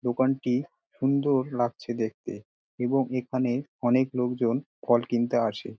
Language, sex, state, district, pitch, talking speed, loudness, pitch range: Bengali, male, West Bengal, Dakshin Dinajpur, 125 Hz, 115 wpm, -27 LUFS, 120-130 Hz